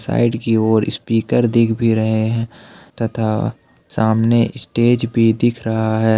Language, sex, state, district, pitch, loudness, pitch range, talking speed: Hindi, male, Jharkhand, Ranchi, 115 Hz, -17 LUFS, 110-115 Hz, 155 wpm